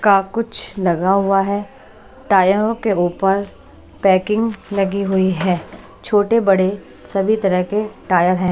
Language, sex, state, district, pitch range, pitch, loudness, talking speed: Hindi, female, Maharashtra, Washim, 190-210 Hz, 195 Hz, -17 LUFS, 135 wpm